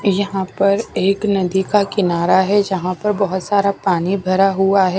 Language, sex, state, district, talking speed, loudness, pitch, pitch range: Hindi, female, Punjab, Kapurthala, 180 wpm, -17 LUFS, 195 Hz, 185-200 Hz